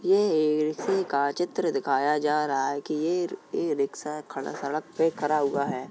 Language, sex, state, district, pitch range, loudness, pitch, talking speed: Hindi, male, Uttar Pradesh, Jalaun, 150-180 Hz, -27 LUFS, 155 Hz, 195 wpm